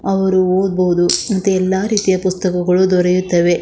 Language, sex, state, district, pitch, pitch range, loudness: Kannada, female, Karnataka, Shimoga, 185 Hz, 180-190 Hz, -15 LUFS